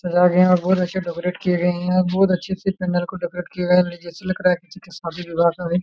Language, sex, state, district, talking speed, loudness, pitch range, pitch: Hindi, male, Jharkhand, Jamtara, 270 wpm, -20 LUFS, 175-185 Hz, 180 Hz